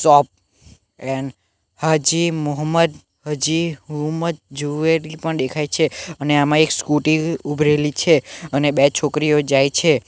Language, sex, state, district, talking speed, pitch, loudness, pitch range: Gujarati, male, Gujarat, Navsari, 130 wpm, 150 Hz, -19 LUFS, 140-160 Hz